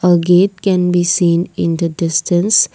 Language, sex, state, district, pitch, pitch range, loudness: English, female, Assam, Kamrup Metropolitan, 175 Hz, 170-180 Hz, -14 LUFS